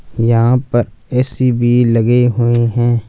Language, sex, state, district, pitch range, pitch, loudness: Hindi, male, Punjab, Fazilka, 115-125 Hz, 120 Hz, -13 LUFS